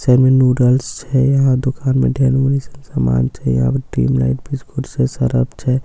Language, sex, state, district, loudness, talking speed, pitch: Maithili, male, Bihar, Katihar, -16 LUFS, 195 wpm, 130 Hz